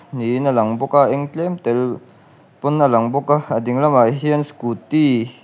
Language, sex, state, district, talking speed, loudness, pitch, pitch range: Mizo, male, Mizoram, Aizawl, 220 wpm, -17 LUFS, 135 Hz, 120-145 Hz